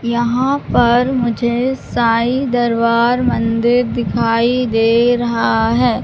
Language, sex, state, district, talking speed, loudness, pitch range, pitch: Hindi, female, Madhya Pradesh, Katni, 100 wpm, -15 LUFS, 230-245 Hz, 240 Hz